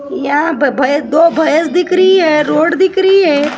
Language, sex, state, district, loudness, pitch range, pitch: Hindi, female, Maharashtra, Gondia, -11 LUFS, 295-355 Hz, 315 Hz